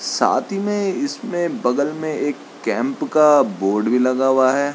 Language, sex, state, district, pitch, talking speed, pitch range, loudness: Hindi, male, Uttarakhand, Tehri Garhwal, 150 Hz, 175 wpm, 130-195 Hz, -19 LUFS